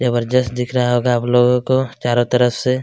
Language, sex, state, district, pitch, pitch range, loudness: Hindi, male, Chhattisgarh, Kabirdham, 125 Hz, 120-125 Hz, -16 LUFS